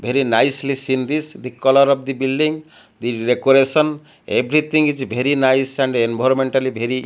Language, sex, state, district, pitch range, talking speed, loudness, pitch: English, male, Odisha, Malkangiri, 125-140 Hz, 160 wpm, -17 LUFS, 135 Hz